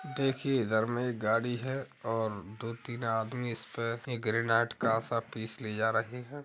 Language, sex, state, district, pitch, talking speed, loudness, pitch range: Hindi, male, Uttar Pradesh, Hamirpur, 115 Hz, 175 wpm, -33 LUFS, 110-125 Hz